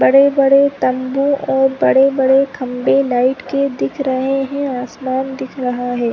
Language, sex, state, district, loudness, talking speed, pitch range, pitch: Hindi, female, Chhattisgarh, Rajnandgaon, -15 LUFS, 135 wpm, 255-275 Hz, 265 Hz